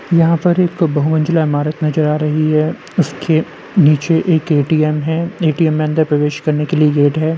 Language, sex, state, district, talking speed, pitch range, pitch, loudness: Hindi, male, Uttar Pradesh, Jalaun, 195 wpm, 150-165 Hz, 155 Hz, -15 LUFS